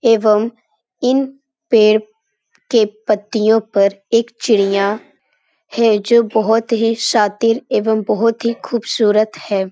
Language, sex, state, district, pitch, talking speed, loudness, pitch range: Hindi, female, Bihar, Jamui, 225 Hz, 110 wpm, -15 LUFS, 215-235 Hz